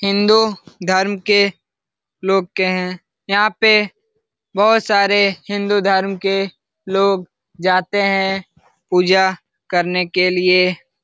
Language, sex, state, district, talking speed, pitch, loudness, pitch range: Hindi, male, Bihar, Lakhisarai, 110 wpm, 195 Hz, -16 LUFS, 185-205 Hz